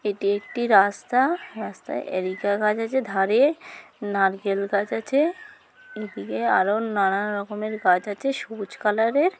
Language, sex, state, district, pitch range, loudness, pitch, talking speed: Bengali, female, West Bengal, Kolkata, 200-260 Hz, -23 LUFS, 210 Hz, 140 wpm